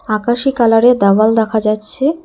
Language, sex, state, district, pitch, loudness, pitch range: Bengali, female, West Bengal, Alipurduar, 225 Hz, -12 LUFS, 215-255 Hz